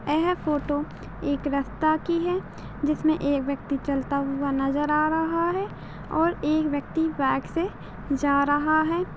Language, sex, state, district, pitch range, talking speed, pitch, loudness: Hindi, female, Chhattisgarh, Balrampur, 280-320 Hz, 150 wpm, 295 Hz, -25 LUFS